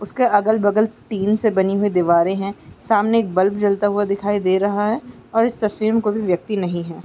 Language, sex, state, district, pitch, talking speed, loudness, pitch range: Hindi, female, Bihar, Araria, 205 Hz, 220 wpm, -19 LUFS, 195-220 Hz